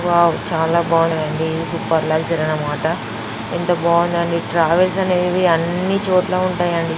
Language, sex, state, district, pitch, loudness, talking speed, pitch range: Telugu, female, Andhra Pradesh, Anantapur, 170 Hz, -18 LUFS, 110 wpm, 160-175 Hz